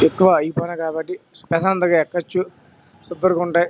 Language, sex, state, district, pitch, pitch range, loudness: Telugu, male, Andhra Pradesh, Krishna, 175 Hz, 165-180 Hz, -19 LUFS